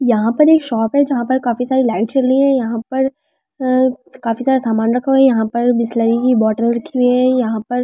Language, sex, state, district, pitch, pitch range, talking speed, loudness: Hindi, female, Delhi, New Delhi, 250 Hz, 230-265 Hz, 235 wpm, -15 LUFS